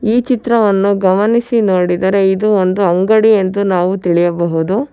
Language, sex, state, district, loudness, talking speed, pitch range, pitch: Kannada, female, Karnataka, Bangalore, -13 LUFS, 120 wpm, 185-220 Hz, 195 Hz